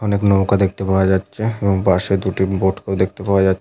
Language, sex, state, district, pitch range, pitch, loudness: Bengali, male, West Bengal, Jalpaiguri, 95-100 Hz, 95 Hz, -17 LUFS